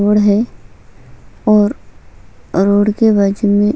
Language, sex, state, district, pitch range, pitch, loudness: Hindi, female, Chhattisgarh, Sukma, 205-215 Hz, 205 Hz, -14 LUFS